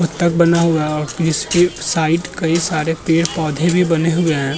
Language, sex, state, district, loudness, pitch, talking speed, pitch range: Hindi, male, Uttar Pradesh, Muzaffarnagar, -16 LUFS, 165 Hz, 170 wpm, 155-170 Hz